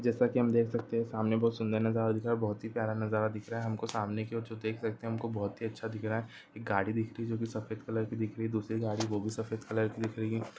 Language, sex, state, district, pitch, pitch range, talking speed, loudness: Hindi, male, Bihar, Jahanabad, 110 Hz, 110-115 Hz, 335 wpm, -34 LUFS